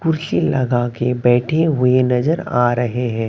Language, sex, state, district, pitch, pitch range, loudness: Hindi, male, Bihar, Katihar, 125 Hz, 120-155 Hz, -17 LUFS